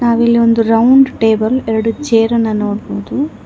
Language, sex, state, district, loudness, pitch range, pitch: Kannada, female, Karnataka, Bangalore, -13 LUFS, 225-240 Hz, 230 Hz